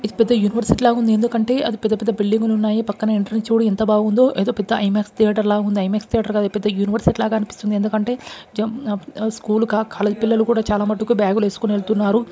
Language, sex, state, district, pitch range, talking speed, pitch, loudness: Telugu, male, Andhra Pradesh, Krishna, 210-225 Hz, 200 wpm, 215 Hz, -19 LUFS